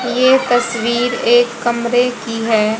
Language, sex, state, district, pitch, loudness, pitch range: Hindi, female, Haryana, Rohtak, 240 Hz, -15 LUFS, 235-245 Hz